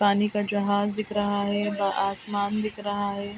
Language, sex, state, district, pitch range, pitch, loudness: Hindi, female, Bihar, Araria, 200-205 Hz, 205 Hz, -26 LUFS